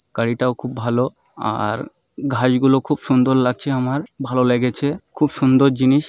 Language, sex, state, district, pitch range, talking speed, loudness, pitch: Bengali, male, West Bengal, North 24 Parganas, 125-140 Hz, 150 wpm, -19 LUFS, 130 Hz